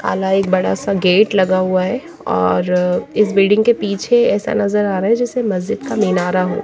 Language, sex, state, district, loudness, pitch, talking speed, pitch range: Hindi, female, Bihar, Patna, -16 LUFS, 195 Hz, 215 wpm, 185-220 Hz